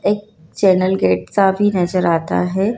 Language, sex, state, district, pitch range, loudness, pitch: Hindi, female, Madhya Pradesh, Dhar, 165-200 Hz, -16 LUFS, 185 Hz